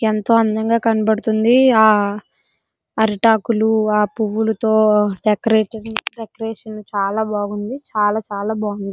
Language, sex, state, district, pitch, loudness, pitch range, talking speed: Telugu, female, Andhra Pradesh, Srikakulam, 220 Hz, -17 LUFS, 210-225 Hz, 80 wpm